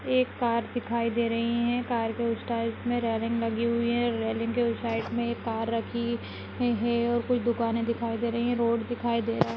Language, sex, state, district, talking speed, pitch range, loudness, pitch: Hindi, female, Rajasthan, Nagaur, 205 wpm, 230-235 Hz, -28 LUFS, 235 Hz